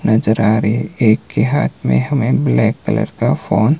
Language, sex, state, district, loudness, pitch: Hindi, male, Himachal Pradesh, Shimla, -15 LUFS, 110 Hz